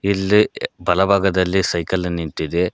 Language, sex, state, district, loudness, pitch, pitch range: Kannada, male, Karnataka, Koppal, -18 LUFS, 95 Hz, 85-95 Hz